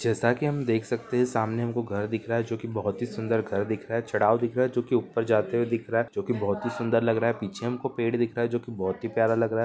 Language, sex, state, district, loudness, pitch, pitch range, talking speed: Hindi, male, Bihar, Muzaffarpur, -27 LUFS, 115 Hz, 110-120 Hz, 315 wpm